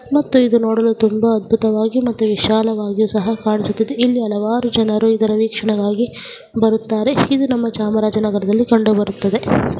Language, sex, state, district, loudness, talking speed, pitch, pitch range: Kannada, female, Karnataka, Chamarajanagar, -16 LUFS, 110 wpm, 220 Hz, 215-230 Hz